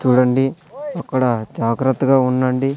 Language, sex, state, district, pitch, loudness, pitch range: Telugu, male, Andhra Pradesh, Sri Satya Sai, 130 Hz, -18 LUFS, 125-135 Hz